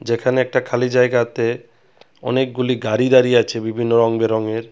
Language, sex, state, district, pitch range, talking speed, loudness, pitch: Bengali, male, Tripura, West Tripura, 115-125 Hz, 140 wpm, -17 LUFS, 120 Hz